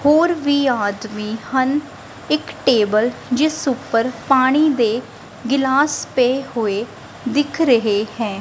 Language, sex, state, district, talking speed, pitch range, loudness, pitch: Punjabi, female, Punjab, Kapurthala, 120 wpm, 225-285 Hz, -18 LUFS, 255 Hz